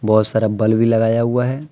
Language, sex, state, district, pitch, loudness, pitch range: Hindi, male, Jharkhand, Deoghar, 115 Hz, -16 LUFS, 110-115 Hz